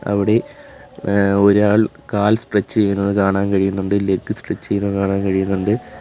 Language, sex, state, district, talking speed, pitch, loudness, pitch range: Malayalam, male, Kerala, Kollam, 130 wpm, 100 Hz, -18 LUFS, 100-105 Hz